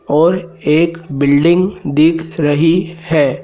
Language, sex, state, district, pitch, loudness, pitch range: Hindi, male, Madhya Pradesh, Dhar, 165 Hz, -14 LUFS, 150-170 Hz